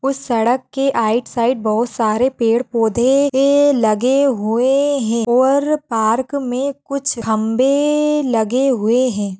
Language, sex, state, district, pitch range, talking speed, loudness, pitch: Hindi, female, Uttar Pradesh, Hamirpur, 230-275 Hz, 95 wpm, -16 LUFS, 255 Hz